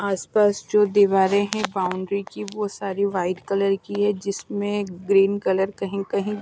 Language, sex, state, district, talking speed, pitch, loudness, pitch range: Hindi, female, Himachal Pradesh, Shimla, 160 wpm, 200 Hz, -22 LUFS, 195-205 Hz